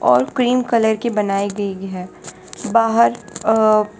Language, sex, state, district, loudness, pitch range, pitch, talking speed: Hindi, female, Gujarat, Valsad, -17 LUFS, 200-230 Hz, 215 Hz, 150 wpm